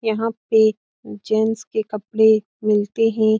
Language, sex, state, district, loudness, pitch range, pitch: Hindi, female, Bihar, Lakhisarai, -19 LUFS, 210-220 Hz, 220 Hz